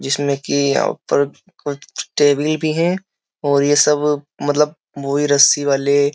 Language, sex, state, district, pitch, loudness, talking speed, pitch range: Hindi, male, Uttar Pradesh, Jyotiba Phule Nagar, 145 Hz, -17 LUFS, 155 wpm, 140-150 Hz